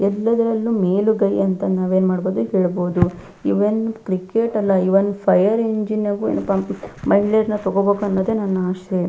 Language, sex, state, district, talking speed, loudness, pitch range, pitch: Kannada, female, Karnataka, Belgaum, 120 wpm, -19 LUFS, 185-215 Hz, 200 Hz